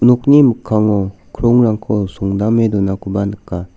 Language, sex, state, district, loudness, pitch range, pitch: Garo, male, Meghalaya, South Garo Hills, -15 LUFS, 100-115 Hz, 105 Hz